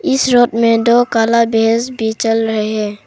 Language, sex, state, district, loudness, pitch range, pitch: Hindi, female, Arunachal Pradesh, Papum Pare, -13 LUFS, 225-240 Hz, 230 Hz